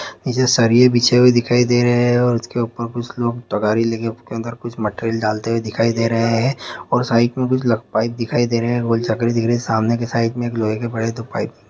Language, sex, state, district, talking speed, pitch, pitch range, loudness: Hindi, male, Uttar Pradesh, Hamirpur, 270 wpm, 115 Hz, 115-120 Hz, -18 LUFS